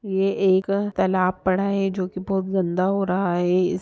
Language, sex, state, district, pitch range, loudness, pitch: Hindi, female, Bihar, Sitamarhi, 185-195 Hz, -22 LUFS, 190 Hz